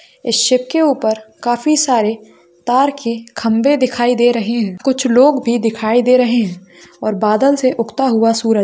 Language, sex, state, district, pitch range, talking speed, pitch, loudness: Hindi, female, Bihar, Jamui, 220-255 Hz, 190 wpm, 235 Hz, -14 LUFS